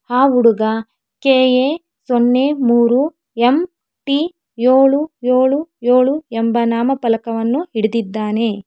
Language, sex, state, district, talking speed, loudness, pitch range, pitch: Kannada, female, Karnataka, Bangalore, 90 wpm, -15 LUFS, 230-275 Hz, 250 Hz